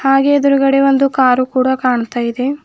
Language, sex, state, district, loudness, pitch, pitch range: Kannada, female, Karnataka, Bidar, -13 LUFS, 270 Hz, 255-275 Hz